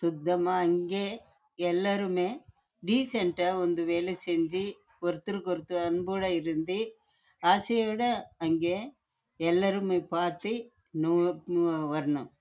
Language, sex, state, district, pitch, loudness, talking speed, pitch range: Tamil, female, Karnataka, Chamarajanagar, 180 Hz, -30 LUFS, 65 wpm, 170-200 Hz